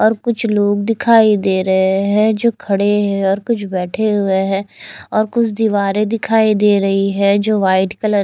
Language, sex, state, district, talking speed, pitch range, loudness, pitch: Hindi, female, Chandigarh, Chandigarh, 190 wpm, 195-220 Hz, -15 LUFS, 205 Hz